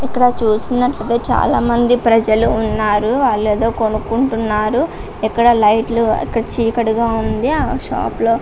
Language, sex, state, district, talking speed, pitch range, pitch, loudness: Telugu, female, Andhra Pradesh, Guntur, 105 wpm, 220-235 Hz, 230 Hz, -15 LUFS